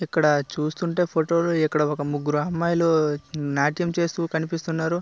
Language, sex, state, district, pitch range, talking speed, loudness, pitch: Telugu, male, Andhra Pradesh, Visakhapatnam, 150-170 Hz, 110 wpm, -23 LUFS, 160 Hz